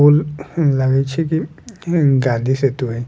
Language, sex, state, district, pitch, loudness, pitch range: Bajjika, male, Bihar, Vaishali, 140 Hz, -17 LUFS, 130-160 Hz